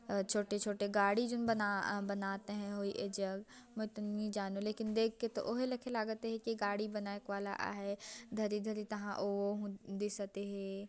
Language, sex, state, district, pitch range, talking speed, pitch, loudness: Chhattisgarhi, female, Chhattisgarh, Jashpur, 200-220 Hz, 175 wpm, 205 Hz, -39 LUFS